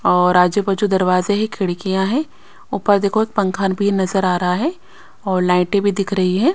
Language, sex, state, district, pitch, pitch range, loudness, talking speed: Hindi, female, Haryana, Rohtak, 195 Hz, 185-205 Hz, -17 LUFS, 200 wpm